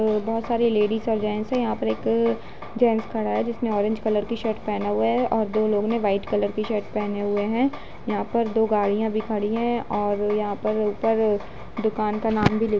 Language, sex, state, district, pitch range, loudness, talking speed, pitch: Hindi, female, Uttar Pradesh, Budaun, 210-225 Hz, -24 LUFS, 225 wpm, 215 Hz